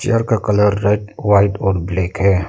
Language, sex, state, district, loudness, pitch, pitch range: Hindi, male, Arunachal Pradesh, Lower Dibang Valley, -16 LUFS, 100 Hz, 95-105 Hz